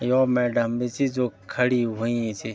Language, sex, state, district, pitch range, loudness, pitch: Garhwali, male, Uttarakhand, Tehri Garhwal, 115-125 Hz, -24 LUFS, 120 Hz